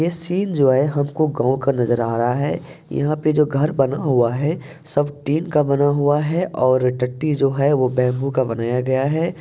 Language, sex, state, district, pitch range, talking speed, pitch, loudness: Hindi, male, Bihar, Purnia, 130-150 Hz, 210 wpm, 140 Hz, -19 LUFS